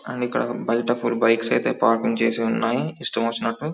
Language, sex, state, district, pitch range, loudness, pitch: Telugu, male, Telangana, Karimnagar, 115-120 Hz, -22 LUFS, 115 Hz